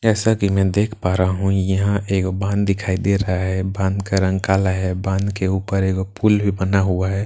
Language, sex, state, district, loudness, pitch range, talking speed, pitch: Hindi, male, Bihar, Katihar, -19 LUFS, 95-100 Hz, 255 wpm, 95 Hz